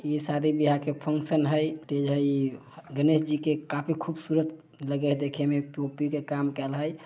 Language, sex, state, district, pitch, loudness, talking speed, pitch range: Maithili, male, Bihar, Samastipur, 150 Hz, -28 LUFS, 180 wpm, 145-155 Hz